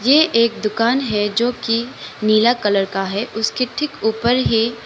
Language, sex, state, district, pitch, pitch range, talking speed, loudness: Hindi, female, Arunachal Pradesh, Lower Dibang Valley, 230 Hz, 215-240 Hz, 175 wpm, -18 LUFS